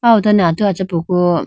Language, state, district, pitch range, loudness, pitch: Idu Mishmi, Arunachal Pradesh, Lower Dibang Valley, 175-210 Hz, -14 LUFS, 190 Hz